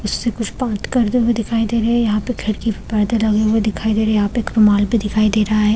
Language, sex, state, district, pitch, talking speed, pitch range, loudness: Hindi, female, Chhattisgarh, Balrampur, 220 Hz, 315 wpm, 215-230 Hz, -17 LUFS